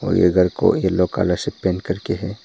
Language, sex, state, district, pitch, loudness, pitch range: Hindi, male, Arunachal Pradesh, Papum Pare, 90 Hz, -19 LUFS, 90-95 Hz